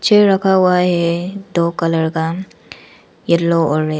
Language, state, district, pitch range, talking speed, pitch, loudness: Hindi, Arunachal Pradesh, Lower Dibang Valley, 165-190 Hz, 165 wpm, 170 Hz, -15 LUFS